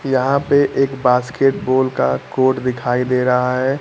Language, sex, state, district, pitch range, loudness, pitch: Hindi, male, Bihar, Kaimur, 125-135 Hz, -17 LUFS, 130 Hz